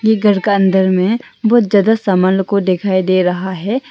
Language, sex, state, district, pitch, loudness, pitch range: Hindi, female, Arunachal Pradesh, Longding, 200 Hz, -14 LUFS, 185-220 Hz